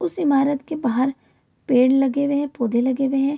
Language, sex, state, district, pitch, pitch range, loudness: Hindi, female, Bihar, Kishanganj, 270 Hz, 260-285 Hz, -20 LUFS